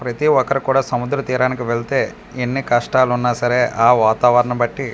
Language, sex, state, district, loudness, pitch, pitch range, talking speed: Telugu, male, Andhra Pradesh, Manyam, -17 LUFS, 125 Hz, 120-135 Hz, 145 wpm